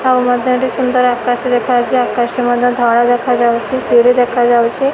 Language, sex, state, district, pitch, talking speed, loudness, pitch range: Odia, female, Odisha, Malkangiri, 245 Hz, 145 wpm, -13 LUFS, 240-250 Hz